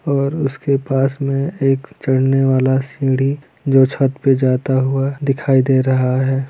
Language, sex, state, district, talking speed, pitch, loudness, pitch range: Hindi, male, Bihar, Lakhisarai, 155 wpm, 135 Hz, -16 LUFS, 130-140 Hz